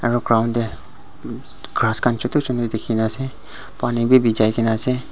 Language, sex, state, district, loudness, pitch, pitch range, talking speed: Nagamese, male, Nagaland, Dimapur, -19 LUFS, 120 Hz, 110-125 Hz, 175 wpm